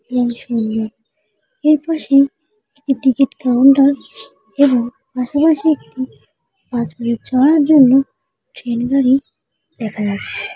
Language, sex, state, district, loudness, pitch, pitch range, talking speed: Bengali, female, West Bengal, Jalpaiguri, -15 LUFS, 260 Hz, 235-285 Hz, 90 wpm